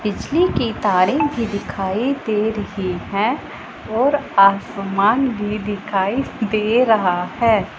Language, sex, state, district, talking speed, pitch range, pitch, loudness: Hindi, female, Punjab, Pathankot, 115 wpm, 195-240 Hz, 210 Hz, -19 LUFS